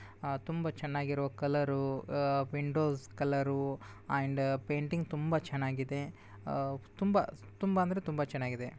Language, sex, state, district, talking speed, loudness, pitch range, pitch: Kannada, male, Karnataka, Bijapur, 110 wpm, -34 LUFS, 135-150 Hz, 140 Hz